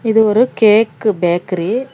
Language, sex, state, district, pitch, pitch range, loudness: Tamil, female, Karnataka, Bangalore, 215 Hz, 185-225 Hz, -14 LUFS